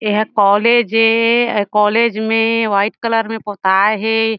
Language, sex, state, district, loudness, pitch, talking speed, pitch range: Chhattisgarhi, female, Chhattisgarh, Jashpur, -14 LUFS, 220 Hz, 135 wpm, 210-225 Hz